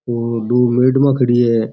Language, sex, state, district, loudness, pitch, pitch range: Rajasthani, male, Rajasthan, Churu, -14 LUFS, 120 Hz, 115-125 Hz